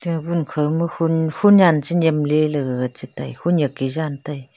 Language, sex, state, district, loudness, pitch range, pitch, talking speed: Wancho, female, Arunachal Pradesh, Longding, -19 LUFS, 145-170 Hz, 155 Hz, 160 wpm